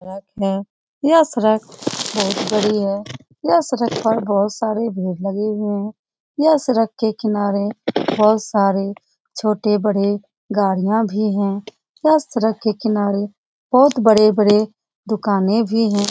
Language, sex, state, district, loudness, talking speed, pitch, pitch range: Hindi, female, Bihar, Lakhisarai, -18 LUFS, 130 wpm, 215 Hz, 205-225 Hz